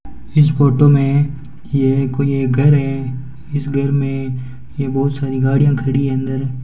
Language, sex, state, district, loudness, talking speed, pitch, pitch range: Hindi, male, Rajasthan, Bikaner, -16 LUFS, 160 wpm, 135 Hz, 130-140 Hz